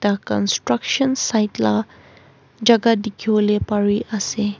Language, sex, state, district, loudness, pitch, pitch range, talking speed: Nagamese, female, Nagaland, Kohima, -19 LUFS, 205 Hz, 135-220 Hz, 115 wpm